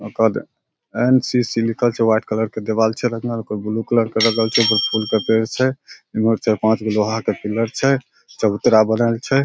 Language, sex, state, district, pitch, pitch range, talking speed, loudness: Maithili, male, Bihar, Samastipur, 110 Hz, 110-115 Hz, 215 wpm, -18 LUFS